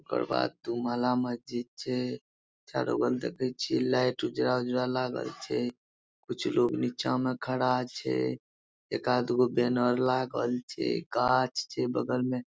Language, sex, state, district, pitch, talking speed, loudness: Maithili, male, Bihar, Madhepura, 125 Hz, 145 wpm, -30 LUFS